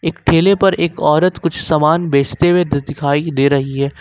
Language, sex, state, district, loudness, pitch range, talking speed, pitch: Hindi, male, Jharkhand, Ranchi, -15 LUFS, 140-175 Hz, 195 wpm, 155 Hz